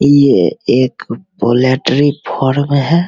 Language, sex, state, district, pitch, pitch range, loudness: Hindi, male, Bihar, Begusarai, 140 Hz, 130-145 Hz, -13 LUFS